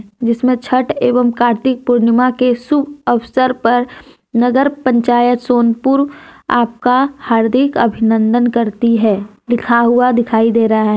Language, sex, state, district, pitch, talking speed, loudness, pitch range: Hindi, female, Jharkhand, Deoghar, 240 Hz, 125 wpm, -13 LUFS, 230-255 Hz